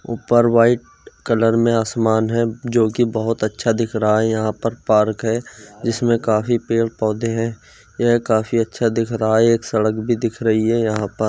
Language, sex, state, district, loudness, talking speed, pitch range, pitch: Hindi, male, Uttar Pradesh, Jyotiba Phule Nagar, -18 LUFS, 190 wpm, 110-115 Hz, 115 Hz